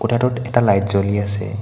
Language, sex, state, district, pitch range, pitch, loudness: Assamese, male, Assam, Hailakandi, 100-120 Hz, 105 Hz, -18 LUFS